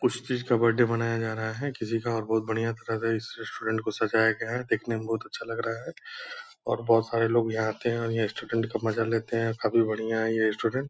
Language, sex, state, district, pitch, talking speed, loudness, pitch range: Hindi, male, Bihar, Purnia, 115 Hz, 255 wpm, -28 LUFS, 110-120 Hz